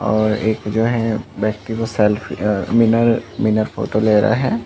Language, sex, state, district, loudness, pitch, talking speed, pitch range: Hindi, male, Chhattisgarh, Bastar, -18 LUFS, 110 Hz, 155 wpm, 105-115 Hz